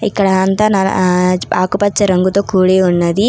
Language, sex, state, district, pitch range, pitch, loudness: Telugu, female, Telangana, Hyderabad, 185-200 Hz, 190 Hz, -13 LUFS